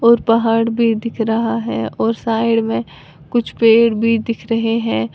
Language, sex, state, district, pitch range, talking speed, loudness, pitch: Hindi, female, Uttar Pradesh, Lalitpur, 210-230 Hz, 175 wpm, -16 LUFS, 225 Hz